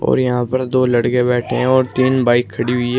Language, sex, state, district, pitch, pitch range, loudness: Hindi, male, Uttar Pradesh, Saharanpur, 125 Hz, 120-130 Hz, -16 LUFS